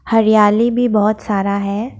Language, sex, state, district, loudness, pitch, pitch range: Hindi, female, Assam, Kamrup Metropolitan, -15 LUFS, 215 Hz, 205-225 Hz